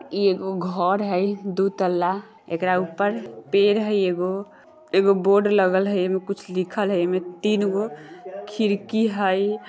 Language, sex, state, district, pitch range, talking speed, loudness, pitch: Bajjika, female, Bihar, Vaishali, 185-205 Hz, 150 wpm, -22 LUFS, 195 Hz